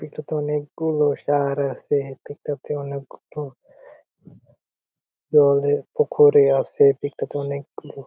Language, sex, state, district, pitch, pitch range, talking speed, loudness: Bengali, male, West Bengal, Purulia, 145 Hz, 140-150 Hz, 90 wpm, -21 LUFS